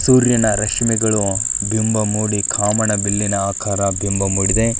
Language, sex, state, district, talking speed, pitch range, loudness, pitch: Kannada, male, Karnataka, Belgaum, 110 wpm, 100-110 Hz, -16 LUFS, 105 Hz